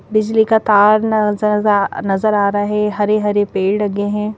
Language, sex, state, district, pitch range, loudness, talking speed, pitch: Hindi, female, Madhya Pradesh, Bhopal, 205-215 Hz, -15 LUFS, 165 wpm, 210 Hz